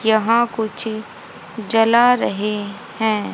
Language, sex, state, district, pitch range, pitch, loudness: Hindi, female, Haryana, Jhajjar, 215-230 Hz, 220 Hz, -18 LUFS